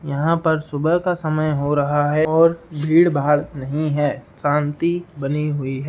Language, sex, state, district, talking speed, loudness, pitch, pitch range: Hindi, male, Uttar Pradesh, Gorakhpur, 175 wpm, -19 LUFS, 150 Hz, 145-160 Hz